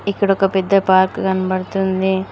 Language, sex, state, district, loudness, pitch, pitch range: Telugu, female, Telangana, Mahabubabad, -17 LUFS, 190 Hz, 190-195 Hz